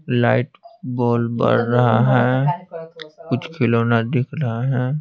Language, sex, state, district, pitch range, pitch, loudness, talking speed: Hindi, male, Bihar, Patna, 120-155 Hz, 125 Hz, -19 LUFS, 120 wpm